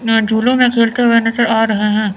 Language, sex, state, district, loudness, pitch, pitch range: Hindi, female, Chandigarh, Chandigarh, -13 LUFS, 225 Hz, 220-235 Hz